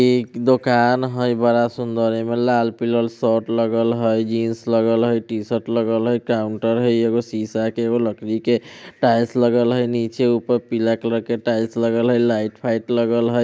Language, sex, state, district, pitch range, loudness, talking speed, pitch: Hindi, male, Bihar, Vaishali, 115-120 Hz, -19 LUFS, 180 wpm, 115 Hz